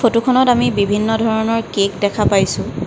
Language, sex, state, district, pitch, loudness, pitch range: Assamese, female, Assam, Kamrup Metropolitan, 225 Hz, -16 LUFS, 205-235 Hz